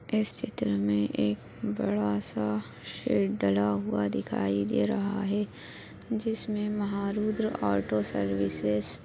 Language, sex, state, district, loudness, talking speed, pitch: Hindi, female, Maharashtra, Aurangabad, -29 LUFS, 115 wpm, 105 Hz